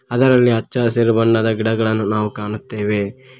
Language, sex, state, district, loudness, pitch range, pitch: Kannada, male, Karnataka, Koppal, -17 LUFS, 105-120 Hz, 115 Hz